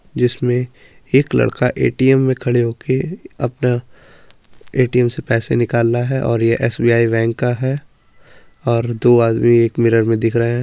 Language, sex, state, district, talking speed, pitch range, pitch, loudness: Hindi, male, Uttar Pradesh, Muzaffarnagar, 165 wpm, 115-125 Hz, 120 Hz, -16 LUFS